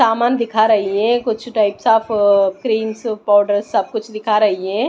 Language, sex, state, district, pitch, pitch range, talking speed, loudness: Hindi, female, Odisha, Malkangiri, 215 Hz, 205-225 Hz, 170 wpm, -16 LUFS